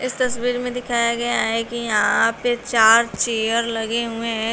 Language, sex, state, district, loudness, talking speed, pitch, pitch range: Hindi, female, Uttar Pradesh, Shamli, -19 LUFS, 170 wpm, 235 Hz, 225-240 Hz